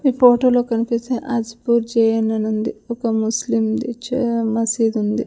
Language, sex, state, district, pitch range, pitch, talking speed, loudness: Telugu, female, Andhra Pradesh, Sri Satya Sai, 225-240 Hz, 230 Hz, 125 wpm, -19 LUFS